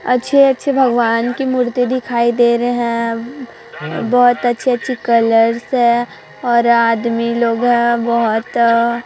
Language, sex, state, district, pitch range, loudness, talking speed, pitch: Hindi, female, Chhattisgarh, Raipur, 235-245 Hz, -15 LUFS, 125 wpm, 235 Hz